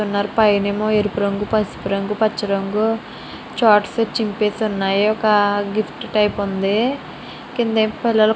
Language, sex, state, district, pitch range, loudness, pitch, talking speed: Telugu, female, Andhra Pradesh, Srikakulam, 205-220 Hz, -19 LUFS, 210 Hz, 130 wpm